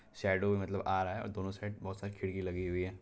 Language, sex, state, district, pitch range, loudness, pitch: Hindi, male, Bihar, Purnia, 95-100 Hz, -37 LUFS, 95 Hz